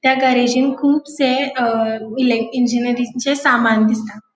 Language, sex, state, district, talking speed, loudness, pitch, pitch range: Konkani, female, Goa, North and South Goa, 110 wpm, -16 LUFS, 245 Hz, 230-265 Hz